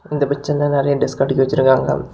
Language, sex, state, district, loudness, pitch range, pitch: Tamil, male, Tamil Nadu, Kanyakumari, -17 LUFS, 130-145 Hz, 140 Hz